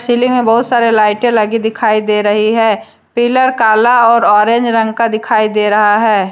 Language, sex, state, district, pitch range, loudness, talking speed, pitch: Hindi, female, Jharkhand, Deoghar, 215-235 Hz, -11 LUFS, 190 wpm, 225 Hz